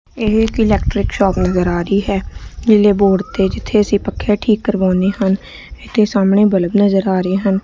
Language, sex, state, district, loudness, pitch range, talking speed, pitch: Punjabi, female, Punjab, Kapurthala, -15 LUFS, 190-210 Hz, 180 wpm, 200 Hz